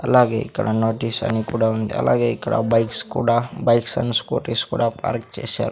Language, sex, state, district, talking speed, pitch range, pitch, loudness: Telugu, male, Andhra Pradesh, Sri Satya Sai, 165 wpm, 110-120 Hz, 115 Hz, -20 LUFS